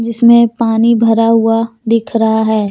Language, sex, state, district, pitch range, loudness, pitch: Hindi, female, Jharkhand, Deoghar, 225-230 Hz, -11 LUFS, 230 Hz